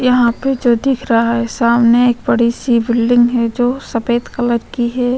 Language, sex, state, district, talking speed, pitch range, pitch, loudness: Hindi, female, Maharashtra, Aurangabad, 195 wpm, 235-245 Hz, 240 Hz, -14 LUFS